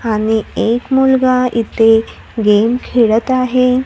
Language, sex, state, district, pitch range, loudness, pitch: Marathi, female, Maharashtra, Gondia, 225-255 Hz, -13 LUFS, 235 Hz